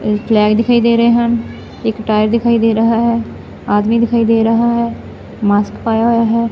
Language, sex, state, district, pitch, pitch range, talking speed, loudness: Punjabi, female, Punjab, Fazilka, 230 Hz, 220-235 Hz, 185 wpm, -13 LUFS